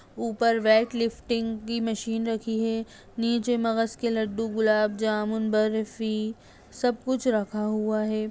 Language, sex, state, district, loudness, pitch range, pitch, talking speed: Hindi, female, Bihar, Jamui, -26 LUFS, 215-230 Hz, 225 Hz, 135 wpm